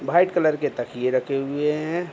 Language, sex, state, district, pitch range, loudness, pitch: Hindi, male, Bihar, Begusarai, 135-165 Hz, -23 LUFS, 145 Hz